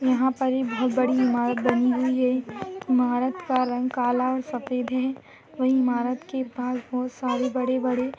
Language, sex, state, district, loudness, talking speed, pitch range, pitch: Hindi, female, Chhattisgarh, Sarguja, -25 LUFS, 185 wpm, 250-260 Hz, 255 Hz